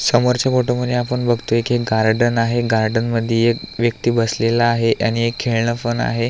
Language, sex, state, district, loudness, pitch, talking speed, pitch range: Marathi, male, Maharashtra, Aurangabad, -18 LUFS, 115 Hz, 180 wpm, 115-120 Hz